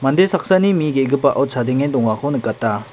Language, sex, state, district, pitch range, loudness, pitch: Garo, male, Meghalaya, West Garo Hills, 125-150 Hz, -17 LUFS, 135 Hz